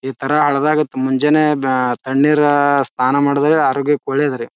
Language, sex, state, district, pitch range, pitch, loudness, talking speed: Kannada, male, Karnataka, Bijapur, 130-150 Hz, 140 Hz, -15 LUFS, 145 wpm